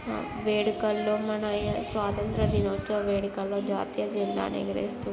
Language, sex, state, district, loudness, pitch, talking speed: Telugu, female, Telangana, Karimnagar, -29 LUFS, 200 Hz, 95 wpm